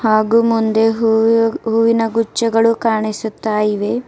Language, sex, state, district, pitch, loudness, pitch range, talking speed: Kannada, female, Karnataka, Bidar, 225 Hz, -15 LUFS, 220-230 Hz, 105 wpm